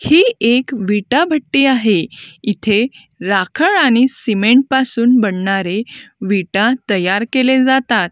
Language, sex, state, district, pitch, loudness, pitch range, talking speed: Marathi, female, Maharashtra, Gondia, 240 Hz, -14 LUFS, 205-260 Hz, 110 wpm